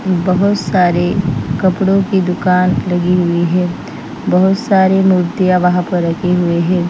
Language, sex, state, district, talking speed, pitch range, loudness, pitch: Hindi, female, Bihar, Patna, 140 wpm, 175-190 Hz, -14 LUFS, 180 Hz